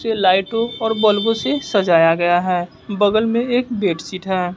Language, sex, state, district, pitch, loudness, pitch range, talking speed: Hindi, male, Bihar, West Champaran, 205 Hz, -17 LUFS, 180-225 Hz, 185 wpm